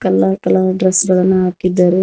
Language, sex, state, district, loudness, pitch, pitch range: Kannada, female, Karnataka, Koppal, -13 LUFS, 185 Hz, 180-185 Hz